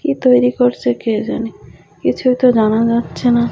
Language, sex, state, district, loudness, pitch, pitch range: Bengali, female, Odisha, Malkangiri, -15 LUFS, 240 Hz, 225-250 Hz